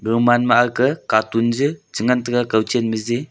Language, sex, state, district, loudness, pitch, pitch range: Wancho, male, Arunachal Pradesh, Longding, -18 LUFS, 120 Hz, 115-125 Hz